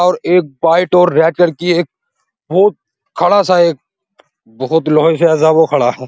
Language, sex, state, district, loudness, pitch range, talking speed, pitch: Hindi, male, Uttar Pradesh, Muzaffarnagar, -12 LUFS, 155-180 Hz, 160 wpm, 165 Hz